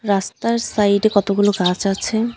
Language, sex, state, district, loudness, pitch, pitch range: Bengali, female, West Bengal, Alipurduar, -18 LUFS, 205 Hz, 200-220 Hz